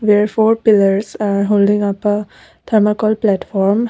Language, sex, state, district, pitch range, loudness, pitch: English, female, Assam, Kamrup Metropolitan, 200-215 Hz, -15 LUFS, 210 Hz